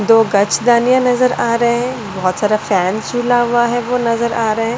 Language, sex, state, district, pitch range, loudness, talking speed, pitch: Hindi, female, Delhi, New Delhi, 215-240 Hz, -15 LUFS, 225 wpm, 235 Hz